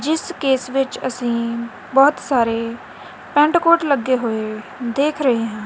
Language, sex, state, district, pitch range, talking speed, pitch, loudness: Punjabi, female, Punjab, Kapurthala, 235-285 Hz, 140 wpm, 255 Hz, -19 LUFS